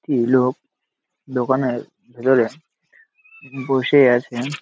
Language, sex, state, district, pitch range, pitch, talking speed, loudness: Bengali, male, West Bengal, Malda, 125-140 Hz, 130 Hz, 80 wpm, -19 LUFS